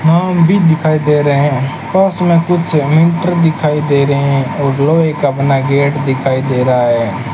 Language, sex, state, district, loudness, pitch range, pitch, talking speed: Hindi, male, Rajasthan, Bikaner, -12 LUFS, 135-165 Hz, 150 Hz, 170 wpm